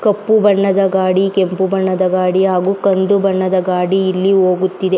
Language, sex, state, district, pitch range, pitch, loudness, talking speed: Kannada, female, Karnataka, Mysore, 185-195 Hz, 190 Hz, -14 LUFS, 155 wpm